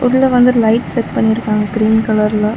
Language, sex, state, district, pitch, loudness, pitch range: Tamil, female, Tamil Nadu, Chennai, 220 Hz, -13 LUFS, 215-245 Hz